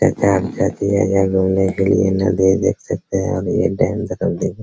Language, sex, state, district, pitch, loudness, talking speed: Hindi, male, Bihar, Araria, 95 Hz, -17 LUFS, 115 wpm